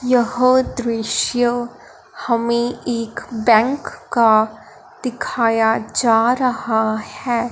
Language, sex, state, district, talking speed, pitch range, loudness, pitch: Hindi, male, Punjab, Fazilka, 80 wpm, 225-250 Hz, -18 LUFS, 235 Hz